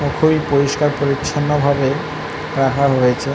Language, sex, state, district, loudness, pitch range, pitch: Bengali, male, West Bengal, North 24 Parganas, -17 LUFS, 140-150 Hz, 145 Hz